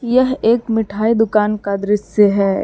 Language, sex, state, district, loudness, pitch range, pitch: Hindi, female, Jharkhand, Palamu, -16 LUFS, 205-230 Hz, 215 Hz